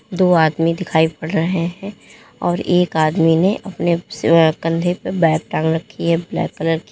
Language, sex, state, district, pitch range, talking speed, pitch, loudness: Hindi, female, Uttar Pradesh, Lalitpur, 160-175 Hz, 180 wpm, 165 Hz, -17 LUFS